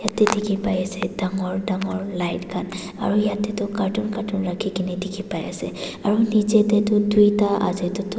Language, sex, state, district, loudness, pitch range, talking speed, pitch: Nagamese, female, Nagaland, Dimapur, -22 LUFS, 190-210 Hz, 170 wpm, 200 Hz